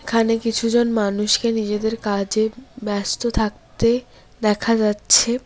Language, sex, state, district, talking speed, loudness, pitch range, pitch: Bengali, female, West Bengal, Cooch Behar, 110 wpm, -20 LUFS, 210-230 Hz, 225 Hz